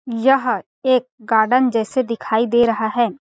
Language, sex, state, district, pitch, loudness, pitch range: Hindi, female, Chhattisgarh, Balrampur, 235 Hz, -18 LUFS, 225-255 Hz